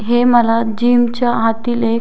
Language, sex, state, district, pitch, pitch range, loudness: Marathi, female, Maharashtra, Dhule, 235 Hz, 225-240 Hz, -14 LUFS